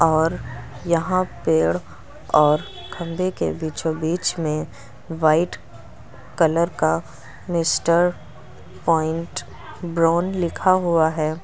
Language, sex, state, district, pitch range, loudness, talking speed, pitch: Hindi, female, Uttar Pradesh, Lucknow, 130-170 Hz, -21 LUFS, 90 wpm, 160 Hz